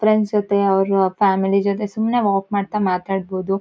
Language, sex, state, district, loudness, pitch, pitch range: Kannada, female, Karnataka, Shimoga, -19 LUFS, 200 Hz, 195-210 Hz